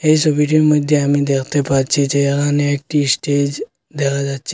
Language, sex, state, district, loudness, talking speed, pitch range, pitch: Bengali, male, Assam, Hailakandi, -16 LUFS, 160 wpm, 140-150 Hz, 145 Hz